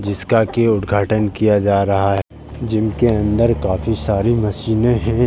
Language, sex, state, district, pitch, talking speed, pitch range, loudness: Hindi, male, Uttar Pradesh, Jalaun, 110 Hz, 160 wpm, 100-115 Hz, -17 LUFS